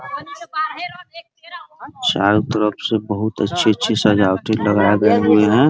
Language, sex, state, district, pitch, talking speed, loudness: Hindi, male, Bihar, Muzaffarpur, 110 Hz, 115 wpm, -17 LUFS